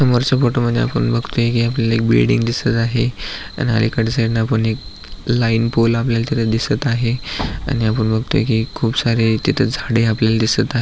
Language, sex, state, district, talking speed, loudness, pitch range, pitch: Marathi, male, Maharashtra, Aurangabad, 185 wpm, -17 LUFS, 110-120 Hz, 115 Hz